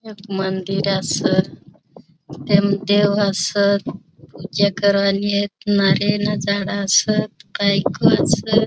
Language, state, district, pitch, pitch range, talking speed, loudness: Bhili, Maharashtra, Dhule, 200 Hz, 195-205 Hz, 90 wpm, -18 LUFS